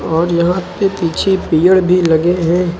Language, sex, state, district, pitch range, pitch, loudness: Hindi, male, Uttar Pradesh, Lucknow, 170-185 Hz, 175 Hz, -13 LUFS